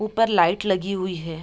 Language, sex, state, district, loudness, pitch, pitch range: Hindi, female, Bihar, Vaishali, -22 LUFS, 190 Hz, 170-215 Hz